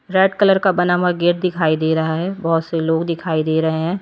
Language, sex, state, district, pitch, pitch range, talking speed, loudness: Hindi, female, Uttar Pradesh, Lalitpur, 170 Hz, 160-180 Hz, 255 wpm, -17 LUFS